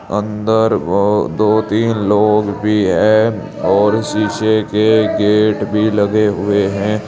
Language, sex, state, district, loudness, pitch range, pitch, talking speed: Hindi, male, Uttar Pradesh, Saharanpur, -14 LUFS, 105-110 Hz, 105 Hz, 125 wpm